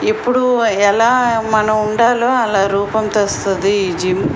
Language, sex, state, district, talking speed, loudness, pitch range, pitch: Telugu, female, Andhra Pradesh, Srikakulam, 140 wpm, -14 LUFS, 200-235 Hz, 215 Hz